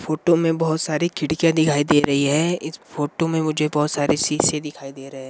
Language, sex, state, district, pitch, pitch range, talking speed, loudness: Hindi, male, Himachal Pradesh, Shimla, 155 Hz, 145-160 Hz, 215 wpm, -20 LUFS